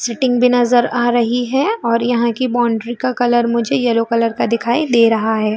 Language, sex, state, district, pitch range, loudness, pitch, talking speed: Hindi, female, Jharkhand, Sahebganj, 230-245 Hz, -15 LUFS, 240 Hz, 205 wpm